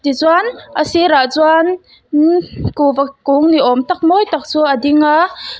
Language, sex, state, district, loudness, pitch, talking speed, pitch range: Mizo, female, Mizoram, Aizawl, -13 LUFS, 305 Hz, 160 wpm, 285-340 Hz